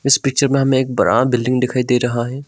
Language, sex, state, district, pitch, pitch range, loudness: Hindi, male, Arunachal Pradesh, Longding, 130 Hz, 125-135 Hz, -16 LUFS